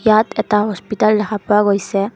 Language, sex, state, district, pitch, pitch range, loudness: Assamese, female, Assam, Kamrup Metropolitan, 210 Hz, 205-215 Hz, -16 LUFS